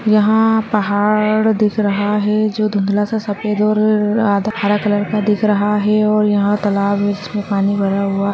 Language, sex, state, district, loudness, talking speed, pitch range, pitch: Hindi, female, Rajasthan, Churu, -16 LUFS, 185 wpm, 205-215 Hz, 210 Hz